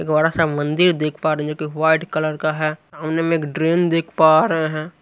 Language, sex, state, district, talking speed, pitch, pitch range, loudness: Hindi, male, Haryana, Rohtak, 240 wpm, 155 Hz, 155-165 Hz, -19 LUFS